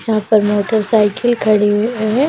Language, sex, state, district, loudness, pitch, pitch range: Hindi, female, Chhattisgarh, Bilaspur, -14 LUFS, 215 Hz, 210-225 Hz